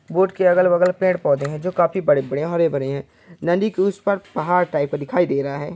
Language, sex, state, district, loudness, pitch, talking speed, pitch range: Hindi, male, Chhattisgarh, Bilaspur, -20 LUFS, 175 Hz, 240 wpm, 145-185 Hz